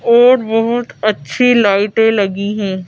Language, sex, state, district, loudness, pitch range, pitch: Hindi, female, Madhya Pradesh, Bhopal, -13 LUFS, 205-235 Hz, 225 Hz